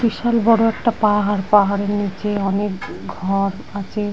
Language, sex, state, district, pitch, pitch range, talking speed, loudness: Bengali, female, West Bengal, Dakshin Dinajpur, 205 Hz, 200-220 Hz, 130 wpm, -19 LUFS